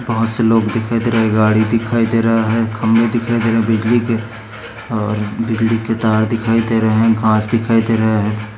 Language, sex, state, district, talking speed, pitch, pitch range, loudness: Hindi, male, Maharashtra, Aurangabad, 225 wpm, 115 Hz, 110-115 Hz, -15 LUFS